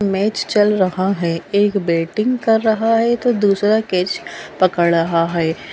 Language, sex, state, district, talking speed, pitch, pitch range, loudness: Hindi, female, Bihar, Gopalganj, 155 wpm, 200 Hz, 170-220 Hz, -17 LUFS